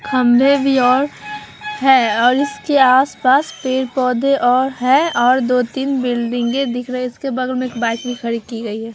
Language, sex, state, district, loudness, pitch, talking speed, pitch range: Hindi, female, Bihar, Vaishali, -16 LUFS, 255 Hz, 175 wpm, 245-275 Hz